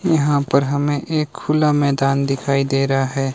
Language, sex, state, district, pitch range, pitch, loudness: Hindi, male, Himachal Pradesh, Shimla, 135-145 Hz, 140 Hz, -18 LUFS